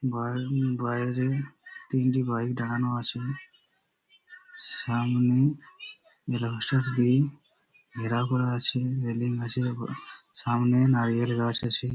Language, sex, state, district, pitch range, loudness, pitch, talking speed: Bengali, male, West Bengal, Purulia, 120-135 Hz, -27 LUFS, 125 Hz, 95 wpm